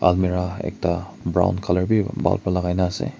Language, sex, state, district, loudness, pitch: Nagamese, male, Nagaland, Kohima, -22 LUFS, 90 Hz